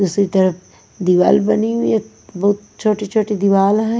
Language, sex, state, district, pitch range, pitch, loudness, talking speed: Hindi, female, Punjab, Pathankot, 180-210 Hz, 195 Hz, -16 LUFS, 150 wpm